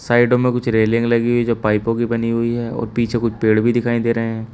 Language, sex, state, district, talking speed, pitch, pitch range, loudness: Hindi, male, Uttar Pradesh, Shamli, 290 wpm, 115 Hz, 115-120 Hz, -18 LUFS